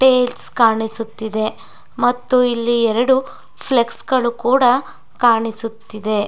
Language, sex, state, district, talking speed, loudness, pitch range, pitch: Kannada, female, Karnataka, Dakshina Kannada, 85 wpm, -17 LUFS, 225-250 Hz, 235 Hz